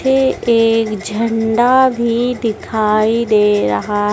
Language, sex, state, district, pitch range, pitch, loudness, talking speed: Hindi, female, Madhya Pradesh, Dhar, 210-235 Hz, 225 Hz, -14 LUFS, 100 wpm